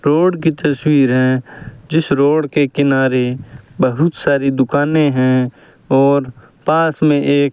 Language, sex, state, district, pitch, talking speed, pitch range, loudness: Hindi, male, Rajasthan, Bikaner, 140 Hz, 135 wpm, 130-150 Hz, -15 LUFS